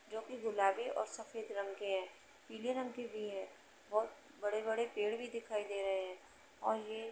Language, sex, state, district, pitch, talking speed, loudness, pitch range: Hindi, female, Uttar Pradesh, Jalaun, 220 Hz, 200 wpm, -40 LUFS, 200-230 Hz